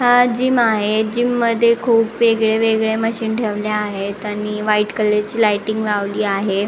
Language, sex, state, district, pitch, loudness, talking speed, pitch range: Marathi, female, Maharashtra, Nagpur, 220 Hz, -17 LUFS, 160 wpm, 210-230 Hz